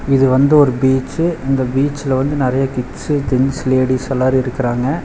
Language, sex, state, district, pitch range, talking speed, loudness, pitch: Tamil, male, Tamil Nadu, Chennai, 130-140 Hz, 155 wpm, -16 LUFS, 130 Hz